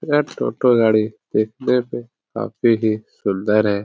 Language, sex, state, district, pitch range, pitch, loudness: Hindi, male, Bihar, Supaul, 105-125 Hz, 110 Hz, -19 LUFS